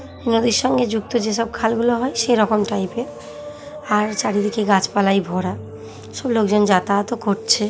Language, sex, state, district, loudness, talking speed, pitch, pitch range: Bengali, female, West Bengal, Jhargram, -19 LUFS, 155 wpm, 215 Hz, 195-235 Hz